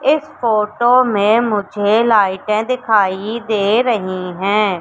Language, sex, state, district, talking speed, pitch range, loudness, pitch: Hindi, female, Madhya Pradesh, Katni, 110 wpm, 205-235 Hz, -15 LUFS, 215 Hz